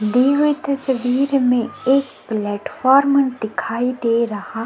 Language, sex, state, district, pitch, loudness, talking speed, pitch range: Hindi, female, Chhattisgarh, Korba, 250 Hz, -18 LUFS, 115 wpm, 225-275 Hz